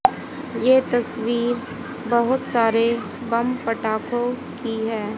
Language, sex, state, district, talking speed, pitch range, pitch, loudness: Hindi, female, Haryana, Jhajjar, 95 wpm, 230-250 Hz, 240 Hz, -22 LUFS